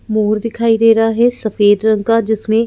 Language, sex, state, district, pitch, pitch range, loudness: Hindi, female, Madhya Pradesh, Bhopal, 225 Hz, 215-230 Hz, -13 LUFS